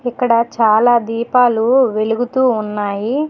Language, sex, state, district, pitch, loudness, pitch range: Telugu, female, Telangana, Hyderabad, 235 Hz, -15 LUFS, 220-250 Hz